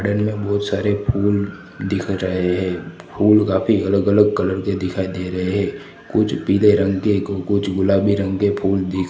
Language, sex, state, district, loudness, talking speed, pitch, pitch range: Hindi, male, Gujarat, Gandhinagar, -19 LUFS, 185 wpm, 100 Hz, 95-100 Hz